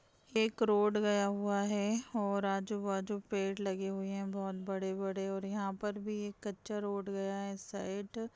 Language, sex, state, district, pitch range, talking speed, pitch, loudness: Hindi, female, Uttar Pradesh, Jalaun, 195-210 Hz, 170 wpm, 200 Hz, -36 LUFS